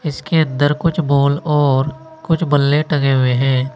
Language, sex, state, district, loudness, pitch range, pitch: Hindi, male, Uttar Pradesh, Saharanpur, -16 LUFS, 135-160 Hz, 145 Hz